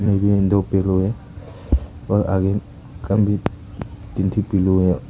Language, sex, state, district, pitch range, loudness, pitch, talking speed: Hindi, male, Arunachal Pradesh, Papum Pare, 95-100 Hz, -20 LUFS, 95 Hz, 105 wpm